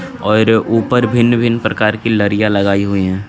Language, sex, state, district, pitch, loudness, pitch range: Hindi, male, Jharkhand, Garhwa, 110 Hz, -13 LUFS, 100-115 Hz